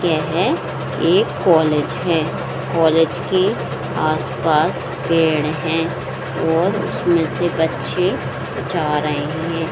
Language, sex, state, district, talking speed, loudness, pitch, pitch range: Hindi, female, Bihar, Saran, 100 wpm, -18 LUFS, 160 Hz, 150-165 Hz